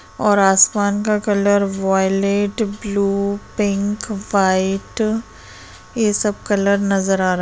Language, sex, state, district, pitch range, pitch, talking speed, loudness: Hindi, female, Bihar, Lakhisarai, 195-210 Hz, 200 Hz, 120 wpm, -18 LUFS